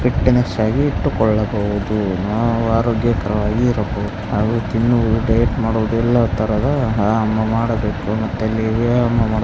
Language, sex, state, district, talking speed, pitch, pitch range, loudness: Kannada, male, Karnataka, Bellary, 120 wpm, 110 Hz, 105-115 Hz, -18 LUFS